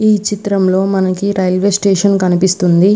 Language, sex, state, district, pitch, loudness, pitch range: Telugu, female, Andhra Pradesh, Visakhapatnam, 195 Hz, -13 LUFS, 185-200 Hz